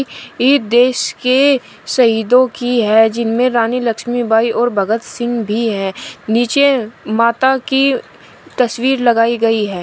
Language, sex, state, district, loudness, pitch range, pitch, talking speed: Hindi, female, Uttar Pradesh, Shamli, -14 LUFS, 225-255 Hz, 240 Hz, 130 wpm